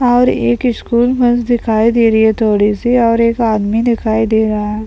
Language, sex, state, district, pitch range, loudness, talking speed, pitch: Hindi, male, Bihar, Madhepura, 220-240 Hz, -13 LUFS, 210 wpm, 230 Hz